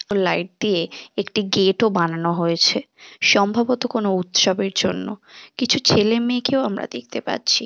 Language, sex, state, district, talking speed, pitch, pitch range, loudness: Bengali, female, West Bengal, Jhargram, 125 wpm, 200 Hz, 185-235 Hz, -20 LUFS